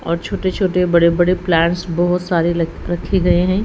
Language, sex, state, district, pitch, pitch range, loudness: Hindi, female, Haryana, Rohtak, 175 Hz, 170-185 Hz, -16 LUFS